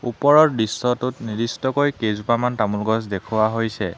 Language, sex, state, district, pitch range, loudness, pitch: Assamese, male, Assam, Hailakandi, 110-125 Hz, -20 LUFS, 115 Hz